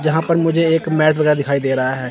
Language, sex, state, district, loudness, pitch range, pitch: Hindi, male, Chandigarh, Chandigarh, -16 LUFS, 140-160 Hz, 155 Hz